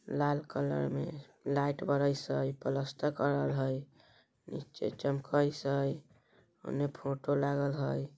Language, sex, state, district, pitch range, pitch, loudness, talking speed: Bajjika, female, Bihar, Vaishali, 125-145 Hz, 140 Hz, -34 LUFS, 115 wpm